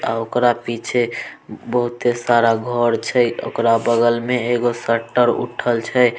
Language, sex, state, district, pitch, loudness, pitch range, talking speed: Maithili, male, Bihar, Samastipur, 120 Hz, -18 LUFS, 115-120 Hz, 135 wpm